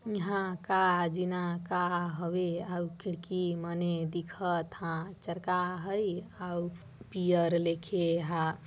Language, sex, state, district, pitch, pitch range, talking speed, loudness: Chhattisgarhi, female, Chhattisgarh, Balrampur, 175 Hz, 170-180 Hz, 110 wpm, -33 LUFS